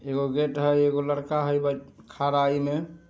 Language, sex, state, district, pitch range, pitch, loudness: Maithili, male, Bihar, Samastipur, 140-150 Hz, 145 Hz, -25 LUFS